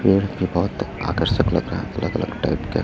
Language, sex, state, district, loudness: Hindi, male, Chhattisgarh, Raipur, -22 LUFS